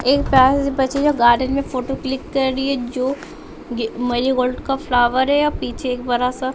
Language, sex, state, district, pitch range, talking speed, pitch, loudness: Hindi, male, Bihar, West Champaran, 250-275 Hz, 220 wpm, 265 Hz, -18 LUFS